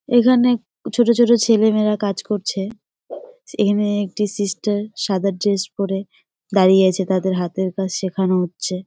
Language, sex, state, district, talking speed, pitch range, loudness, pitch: Bengali, female, West Bengal, Jalpaiguri, 135 wpm, 190-215 Hz, -19 LUFS, 200 Hz